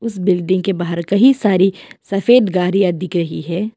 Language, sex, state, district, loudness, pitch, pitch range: Hindi, female, Arunachal Pradesh, Papum Pare, -16 LUFS, 190 Hz, 180-205 Hz